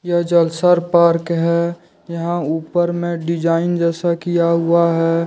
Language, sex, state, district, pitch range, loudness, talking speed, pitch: Hindi, male, Jharkhand, Deoghar, 170-175 Hz, -17 LUFS, 125 wpm, 170 Hz